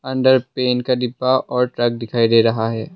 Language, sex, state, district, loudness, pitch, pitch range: Hindi, male, Assam, Sonitpur, -18 LUFS, 125 Hz, 115-130 Hz